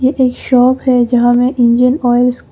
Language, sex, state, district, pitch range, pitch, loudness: Hindi, female, Arunachal Pradesh, Papum Pare, 245-255 Hz, 250 Hz, -11 LUFS